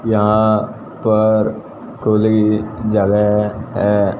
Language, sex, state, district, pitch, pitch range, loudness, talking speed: Hindi, male, Haryana, Jhajjar, 110 Hz, 105-110 Hz, -16 LUFS, 70 wpm